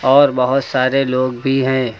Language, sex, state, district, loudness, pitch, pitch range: Hindi, male, Uttar Pradesh, Lucknow, -16 LUFS, 130 Hz, 130-135 Hz